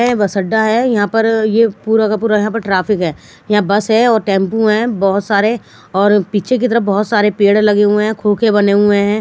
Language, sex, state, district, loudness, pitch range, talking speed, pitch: Hindi, female, Punjab, Fazilka, -13 LUFS, 205-225 Hz, 230 wpm, 210 Hz